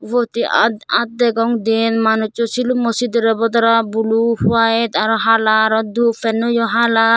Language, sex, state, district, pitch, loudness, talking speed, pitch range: Chakma, female, Tripura, Dhalai, 230 Hz, -15 LUFS, 150 wpm, 225-235 Hz